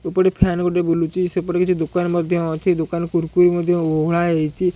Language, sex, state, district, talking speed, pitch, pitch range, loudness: Odia, male, Odisha, Khordha, 175 wpm, 175 Hz, 165-180 Hz, -19 LUFS